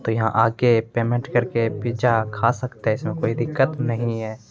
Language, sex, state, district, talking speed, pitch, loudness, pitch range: Hindi, male, Bihar, Begusarai, 200 wpm, 115 Hz, -22 LUFS, 115-120 Hz